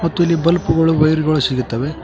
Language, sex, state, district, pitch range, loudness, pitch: Kannada, male, Karnataka, Koppal, 150-165 Hz, -16 LUFS, 160 Hz